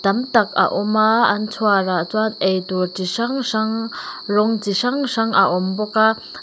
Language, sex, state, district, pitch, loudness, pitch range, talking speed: Mizo, female, Mizoram, Aizawl, 215 Hz, -18 LUFS, 195-225 Hz, 195 wpm